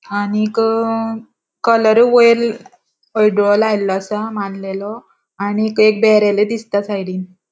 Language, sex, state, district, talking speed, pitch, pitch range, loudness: Konkani, female, Goa, North and South Goa, 105 wpm, 215 Hz, 200-225 Hz, -15 LUFS